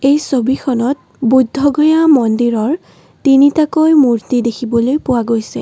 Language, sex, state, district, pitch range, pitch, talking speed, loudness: Assamese, female, Assam, Kamrup Metropolitan, 240-290 Hz, 265 Hz, 95 wpm, -13 LUFS